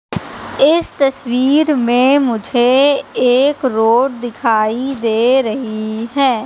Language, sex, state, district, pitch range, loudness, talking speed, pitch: Hindi, female, Madhya Pradesh, Katni, 230-275 Hz, -14 LUFS, 95 wpm, 250 Hz